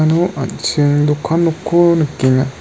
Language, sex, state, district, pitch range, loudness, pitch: Garo, male, Meghalaya, West Garo Hills, 140-165 Hz, -15 LUFS, 155 Hz